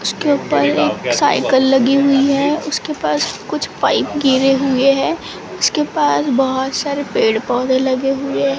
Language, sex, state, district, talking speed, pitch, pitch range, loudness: Hindi, female, Maharashtra, Gondia, 155 wpm, 270 Hz, 260-285 Hz, -16 LUFS